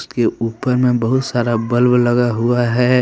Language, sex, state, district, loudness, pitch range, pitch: Hindi, male, Jharkhand, Deoghar, -16 LUFS, 120-125 Hz, 120 Hz